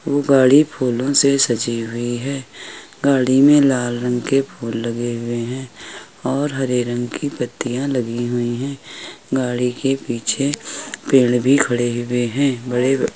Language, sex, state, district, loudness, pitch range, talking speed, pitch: Hindi, male, Uttar Pradesh, Hamirpur, -18 LUFS, 120-135 Hz, 150 wpm, 125 Hz